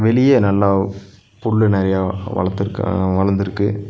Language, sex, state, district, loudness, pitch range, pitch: Tamil, male, Tamil Nadu, Nilgiris, -17 LUFS, 95-105 Hz, 100 Hz